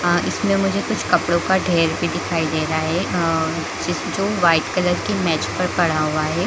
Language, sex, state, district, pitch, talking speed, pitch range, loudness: Hindi, female, Chhattisgarh, Bilaspur, 170 Hz, 205 wpm, 160-180 Hz, -19 LUFS